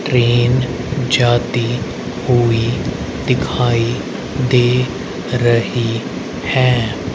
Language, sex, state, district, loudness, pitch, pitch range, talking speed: Hindi, male, Haryana, Rohtak, -16 LUFS, 120 Hz, 115-125 Hz, 60 wpm